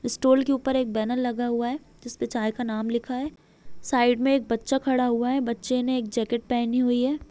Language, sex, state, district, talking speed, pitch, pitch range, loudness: Hindi, female, Chhattisgarh, Bilaspur, 245 wpm, 245 Hz, 235-260 Hz, -25 LUFS